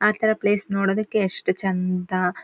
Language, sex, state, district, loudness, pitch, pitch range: Kannada, female, Karnataka, Shimoga, -23 LUFS, 195 Hz, 185-210 Hz